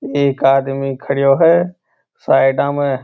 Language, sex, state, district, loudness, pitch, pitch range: Marwari, male, Rajasthan, Churu, -14 LUFS, 140 Hz, 135-140 Hz